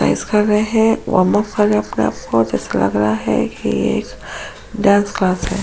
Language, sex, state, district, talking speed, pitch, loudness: Hindi, female, Uttar Pradesh, Jyotiba Phule Nagar, 150 wpm, 190 Hz, -16 LUFS